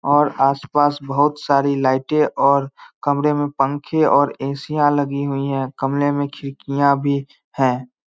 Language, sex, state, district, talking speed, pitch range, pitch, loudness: Hindi, male, Bihar, Samastipur, 140 wpm, 135-145 Hz, 140 Hz, -19 LUFS